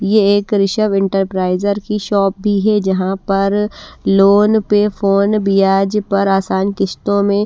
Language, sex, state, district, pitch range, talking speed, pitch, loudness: Hindi, female, Bihar, West Champaran, 195-205 Hz, 145 wpm, 200 Hz, -15 LUFS